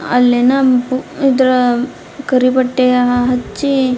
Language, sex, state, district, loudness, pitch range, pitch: Kannada, female, Karnataka, Dharwad, -13 LUFS, 250-265 Hz, 255 Hz